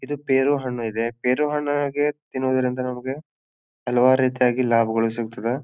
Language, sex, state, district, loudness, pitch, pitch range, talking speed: Kannada, male, Karnataka, Bijapur, -22 LUFS, 130 Hz, 120-145 Hz, 140 wpm